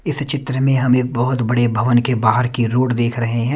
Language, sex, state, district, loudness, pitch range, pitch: Hindi, male, Himachal Pradesh, Shimla, -17 LUFS, 120-130 Hz, 125 Hz